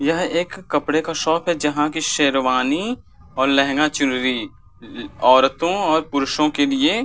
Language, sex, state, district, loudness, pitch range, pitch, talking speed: Hindi, male, Uttar Pradesh, Varanasi, -19 LUFS, 140-165 Hz, 150 Hz, 145 wpm